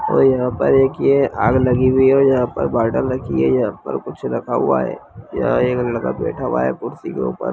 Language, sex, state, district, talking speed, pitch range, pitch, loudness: Hindi, male, Bihar, Lakhisarai, 240 wpm, 115-135 Hz, 125 Hz, -17 LUFS